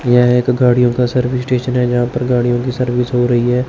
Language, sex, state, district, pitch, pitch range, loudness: Hindi, male, Chandigarh, Chandigarh, 125 Hz, 120-125 Hz, -14 LUFS